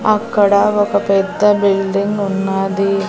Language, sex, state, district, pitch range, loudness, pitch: Telugu, female, Andhra Pradesh, Annamaya, 195-205 Hz, -15 LUFS, 200 Hz